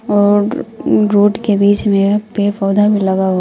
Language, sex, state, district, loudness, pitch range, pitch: Hindi, female, Bihar, West Champaran, -13 LUFS, 200-205 Hz, 205 Hz